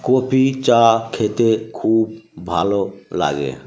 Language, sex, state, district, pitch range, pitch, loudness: Bengali, male, West Bengal, North 24 Parganas, 100-120 Hz, 110 Hz, -17 LUFS